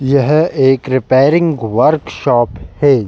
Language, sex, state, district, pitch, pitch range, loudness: Hindi, male, Bihar, Bhagalpur, 135 Hz, 120-150 Hz, -13 LUFS